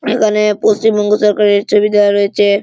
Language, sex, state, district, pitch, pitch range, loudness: Bengali, male, West Bengal, Malda, 210 Hz, 205-215 Hz, -12 LUFS